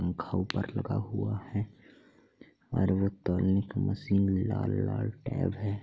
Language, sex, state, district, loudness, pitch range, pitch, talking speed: Hindi, male, Bihar, Gopalganj, -31 LUFS, 100-120 Hz, 105 Hz, 135 wpm